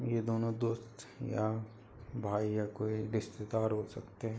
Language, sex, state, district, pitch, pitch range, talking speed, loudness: Hindi, male, Uttar Pradesh, Hamirpur, 110 Hz, 110-115 Hz, 150 wpm, -37 LUFS